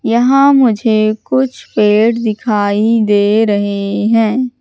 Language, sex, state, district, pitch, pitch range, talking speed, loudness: Hindi, female, Madhya Pradesh, Katni, 220 Hz, 210-245 Hz, 105 wpm, -12 LUFS